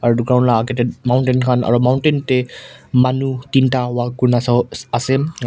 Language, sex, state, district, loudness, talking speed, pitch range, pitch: Nagamese, male, Nagaland, Kohima, -16 LUFS, 165 wpm, 120-130 Hz, 125 Hz